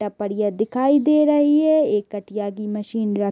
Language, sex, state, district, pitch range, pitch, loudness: Hindi, female, Bihar, Gopalganj, 205-290 Hz, 210 Hz, -20 LUFS